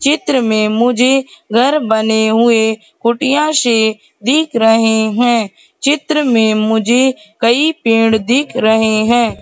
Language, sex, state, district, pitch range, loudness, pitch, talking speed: Hindi, female, Madhya Pradesh, Katni, 220-270 Hz, -13 LUFS, 235 Hz, 120 wpm